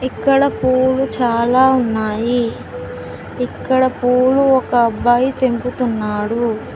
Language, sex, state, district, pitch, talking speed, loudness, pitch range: Telugu, female, Telangana, Mahabubabad, 245 Hz, 80 wpm, -16 LUFS, 225-260 Hz